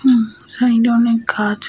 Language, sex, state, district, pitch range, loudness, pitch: Bengali, female, Jharkhand, Sahebganj, 220-240 Hz, -16 LUFS, 235 Hz